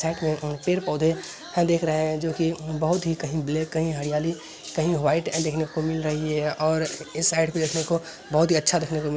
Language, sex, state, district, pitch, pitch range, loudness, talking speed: Hindi, male, Bihar, Lakhisarai, 160 Hz, 155-165 Hz, -25 LUFS, 220 wpm